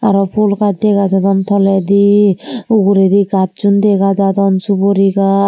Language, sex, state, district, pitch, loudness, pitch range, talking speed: Chakma, female, Tripura, Dhalai, 200 Hz, -12 LUFS, 195-205 Hz, 130 wpm